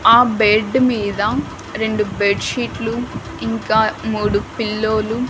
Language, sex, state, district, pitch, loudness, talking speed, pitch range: Telugu, female, Andhra Pradesh, Annamaya, 215 Hz, -18 LUFS, 115 wpm, 205-230 Hz